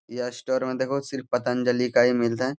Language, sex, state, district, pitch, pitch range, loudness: Hindi, male, Bihar, Jamui, 125 Hz, 125-130 Hz, -25 LUFS